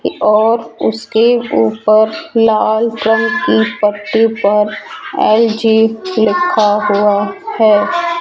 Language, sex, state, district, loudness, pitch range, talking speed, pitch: Hindi, female, Rajasthan, Jaipur, -13 LUFS, 210-230 Hz, 90 wpm, 220 Hz